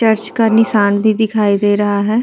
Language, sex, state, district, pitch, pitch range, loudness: Hindi, female, Uttar Pradesh, Hamirpur, 215 Hz, 205-225 Hz, -13 LUFS